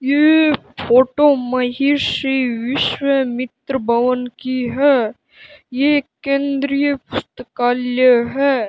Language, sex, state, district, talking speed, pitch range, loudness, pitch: Hindi, male, Rajasthan, Bikaner, 85 wpm, 250-285 Hz, -17 LUFS, 270 Hz